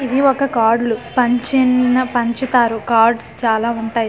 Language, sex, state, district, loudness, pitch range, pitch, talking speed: Telugu, female, Andhra Pradesh, Manyam, -16 LUFS, 230-255 Hz, 240 Hz, 145 wpm